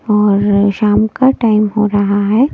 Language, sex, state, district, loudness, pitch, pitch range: Hindi, female, Delhi, New Delhi, -12 LUFS, 210 Hz, 205-220 Hz